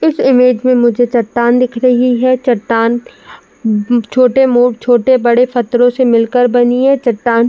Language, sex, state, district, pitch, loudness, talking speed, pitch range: Hindi, female, Uttar Pradesh, Jalaun, 245 Hz, -11 LUFS, 160 wpm, 235-255 Hz